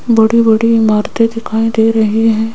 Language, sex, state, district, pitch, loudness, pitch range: Hindi, female, Rajasthan, Jaipur, 225 Hz, -12 LUFS, 220-230 Hz